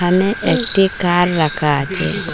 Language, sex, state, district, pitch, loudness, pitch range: Bengali, female, Assam, Hailakandi, 175 Hz, -16 LUFS, 155-190 Hz